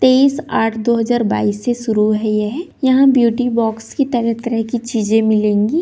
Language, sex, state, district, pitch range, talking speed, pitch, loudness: Hindi, female, Bihar, Jahanabad, 220-250 Hz, 185 wpm, 235 Hz, -16 LUFS